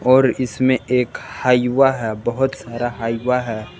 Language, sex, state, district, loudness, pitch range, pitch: Hindi, male, Jharkhand, Palamu, -19 LUFS, 115-130 Hz, 125 Hz